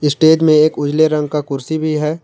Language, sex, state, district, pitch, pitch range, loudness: Hindi, male, Jharkhand, Garhwa, 155 Hz, 150-155 Hz, -14 LUFS